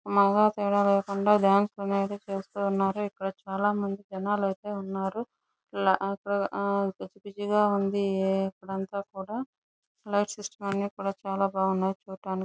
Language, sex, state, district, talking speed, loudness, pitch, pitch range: Telugu, female, Andhra Pradesh, Chittoor, 105 wpm, -28 LUFS, 200 Hz, 195-205 Hz